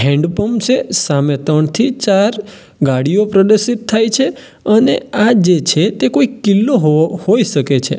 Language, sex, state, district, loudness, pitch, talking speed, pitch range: Gujarati, male, Gujarat, Valsad, -13 LUFS, 200 Hz, 165 wpm, 155-225 Hz